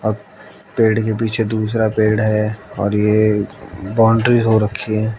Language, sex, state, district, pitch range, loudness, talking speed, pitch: Hindi, male, Haryana, Jhajjar, 105-110 Hz, -16 LUFS, 140 wpm, 110 Hz